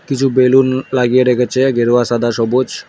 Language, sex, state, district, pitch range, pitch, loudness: Bengali, male, West Bengal, Alipurduar, 120-130 Hz, 125 Hz, -13 LUFS